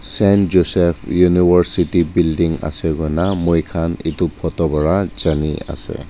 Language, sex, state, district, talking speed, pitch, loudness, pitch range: Nagamese, male, Nagaland, Dimapur, 120 wpm, 85 Hz, -17 LUFS, 80-90 Hz